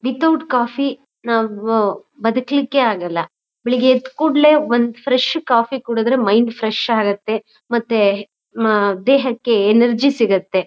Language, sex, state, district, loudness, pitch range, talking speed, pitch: Kannada, female, Karnataka, Mysore, -17 LUFS, 215-260 Hz, 110 wpm, 235 Hz